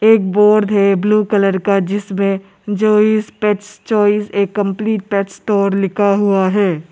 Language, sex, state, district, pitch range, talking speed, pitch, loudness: Hindi, male, Arunachal Pradesh, Lower Dibang Valley, 195-210 Hz, 145 wpm, 205 Hz, -15 LUFS